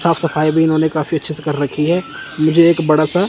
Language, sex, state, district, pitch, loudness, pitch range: Hindi, male, Chandigarh, Chandigarh, 155 Hz, -15 LUFS, 155-170 Hz